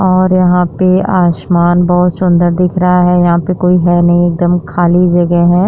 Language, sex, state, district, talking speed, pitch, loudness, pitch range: Hindi, female, Uttar Pradesh, Jyotiba Phule Nagar, 190 wpm, 180 Hz, -10 LUFS, 175-180 Hz